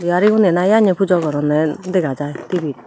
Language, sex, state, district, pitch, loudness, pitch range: Chakma, female, Tripura, Unakoti, 175 Hz, -16 LUFS, 150-190 Hz